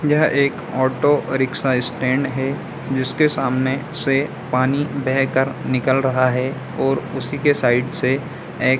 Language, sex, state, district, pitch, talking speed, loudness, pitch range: Hindi, male, Bihar, Samastipur, 135 Hz, 150 wpm, -19 LUFS, 130-140 Hz